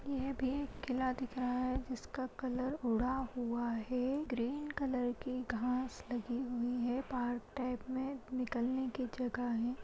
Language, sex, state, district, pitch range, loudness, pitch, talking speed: Hindi, female, Chhattisgarh, Kabirdham, 245-260 Hz, -38 LUFS, 255 Hz, 160 wpm